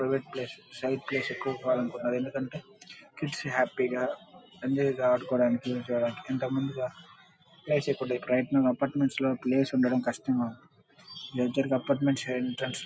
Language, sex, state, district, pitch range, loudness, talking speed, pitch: Telugu, male, Andhra Pradesh, Krishna, 125-135 Hz, -30 LUFS, 75 wpm, 130 Hz